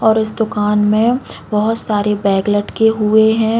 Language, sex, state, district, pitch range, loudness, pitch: Hindi, female, Uttarakhand, Uttarkashi, 210-220 Hz, -15 LUFS, 215 Hz